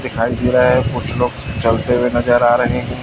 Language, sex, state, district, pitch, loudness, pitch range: Hindi, male, Chhattisgarh, Raipur, 125 Hz, -16 LUFS, 120-125 Hz